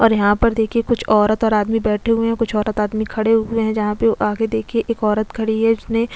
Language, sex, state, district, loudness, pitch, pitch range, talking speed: Hindi, female, Chhattisgarh, Kabirdham, -18 LUFS, 220 Hz, 215-230 Hz, 255 wpm